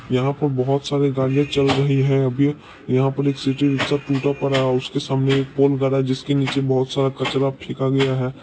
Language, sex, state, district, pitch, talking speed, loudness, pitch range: Maithili, male, Bihar, Supaul, 135 Hz, 220 wpm, -20 LUFS, 135-140 Hz